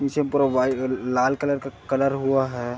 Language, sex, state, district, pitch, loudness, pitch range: Hindi, male, Chhattisgarh, Bilaspur, 135 Hz, -23 LUFS, 130-140 Hz